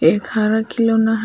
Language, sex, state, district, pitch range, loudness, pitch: Hindi, female, Jharkhand, Palamu, 210-225 Hz, -17 LUFS, 220 Hz